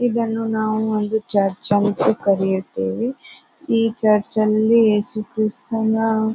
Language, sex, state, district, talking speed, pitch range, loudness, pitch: Kannada, female, Karnataka, Bijapur, 115 wpm, 205-225 Hz, -19 LUFS, 220 Hz